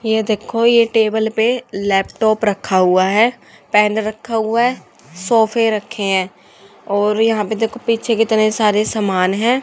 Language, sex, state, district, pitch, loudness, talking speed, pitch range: Hindi, female, Haryana, Charkhi Dadri, 220 Hz, -16 LUFS, 155 wpm, 205-230 Hz